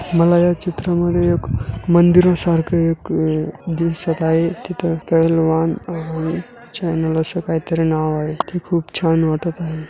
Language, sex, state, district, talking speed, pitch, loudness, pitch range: Marathi, male, Maharashtra, Dhule, 135 wpm, 165 Hz, -18 LUFS, 160-175 Hz